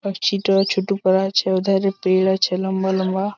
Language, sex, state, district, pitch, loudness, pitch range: Bengali, male, West Bengal, Malda, 190 Hz, -19 LUFS, 190-195 Hz